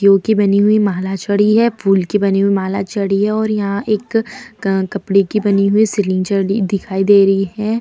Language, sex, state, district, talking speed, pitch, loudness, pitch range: Hindi, female, Bihar, Vaishali, 205 wpm, 200 Hz, -15 LUFS, 195-215 Hz